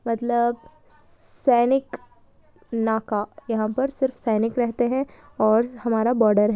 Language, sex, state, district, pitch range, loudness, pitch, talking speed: Hindi, female, Chhattisgarh, Balrampur, 220-250 Hz, -23 LUFS, 235 Hz, 120 wpm